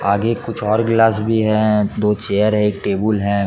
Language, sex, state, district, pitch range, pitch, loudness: Hindi, male, Jharkhand, Jamtara, 105-110 Hz, 105 Hz, -17 LUFS